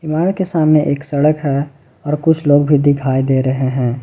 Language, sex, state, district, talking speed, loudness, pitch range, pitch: Hindi, male, Jharkhand, Ranchi, 210 wpm, -15 LUFS, 135-155 Hz, 145 Hz